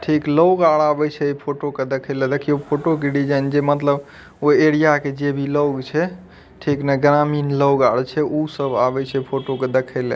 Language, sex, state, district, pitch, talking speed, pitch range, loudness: Maithili, male, Bihar, Madhepura, 145 Hz, 205 wpm, 140-150 Hz, -19 LUFS